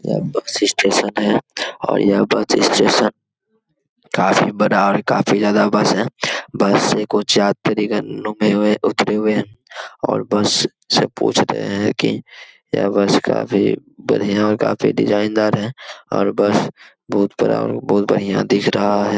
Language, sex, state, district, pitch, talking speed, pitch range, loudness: Hindi, male, Bihar, Jamui, 105 Hz, 155 wpm, 100-105 Hz, -17 LUFS